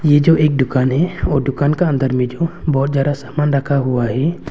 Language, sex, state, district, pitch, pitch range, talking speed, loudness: Hindi, male, Arunachal Pradesh, Longding, 140 Hz, 135-150 Hz, 225 wpm, -16 LUFS